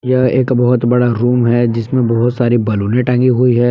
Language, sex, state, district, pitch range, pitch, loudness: Hindi, male, Jharkhand, Palamu, 120-125 Hz, 120 Hz, -13 LUFS